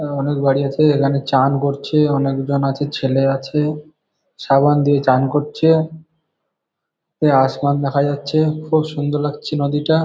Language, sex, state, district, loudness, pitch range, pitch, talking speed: Bengali, male, West Bengal, Kolkata, -17 LUFS, 140-150 Hz, 145 Hz, 145 wpm